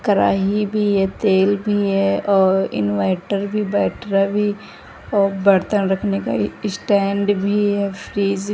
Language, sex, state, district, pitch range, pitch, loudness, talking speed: Hindi, female, Punjab, Kapurthala, 195-205 Hz, 200 Hz, -18 LUFS, 140 wpm